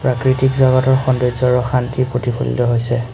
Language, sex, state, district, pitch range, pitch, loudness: Assamese, male, Assam, Hailakandi, 120-130 Hz, 125 Hz, -16 LUFS